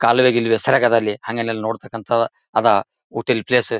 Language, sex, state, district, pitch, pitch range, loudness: Kannada, male, Karnataka, Gulbarga, 115 Hz, 115-120 Hz, -19 LUFS